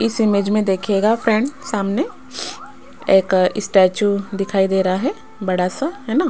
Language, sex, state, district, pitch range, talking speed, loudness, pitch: Hindi, female, Rajasthan, Jaipur, 195-225 Hz, 150 wpm, -18 LUFS, 200 Hz